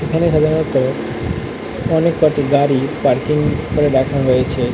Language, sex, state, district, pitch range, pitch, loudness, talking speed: Bengali, male, West Bengal, North 24 Parganas, 130-155 Hz, 145 Hz, -16 LUFS, 100 wpm